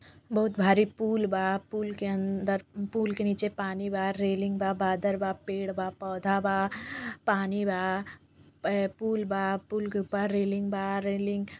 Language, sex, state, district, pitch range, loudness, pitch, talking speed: Bhojpuri, female, Uttar Pradesh, Gorakhpur, 195-205 Hz, -30 LUFS, 200 Hz, 125 wpm